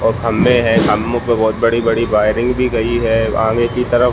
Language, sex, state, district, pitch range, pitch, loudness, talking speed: Hindi, male, Chhattisgarh, Balrampur, 115-120 Hz, 115 Hz, -14 LUFS, 230 wpm